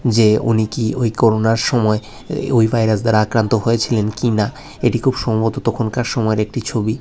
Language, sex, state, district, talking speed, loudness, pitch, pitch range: Bengali, male, Tripura, West Tripura, 160 wpm, -17 LUFS, 115 Hz, 110-120 Hz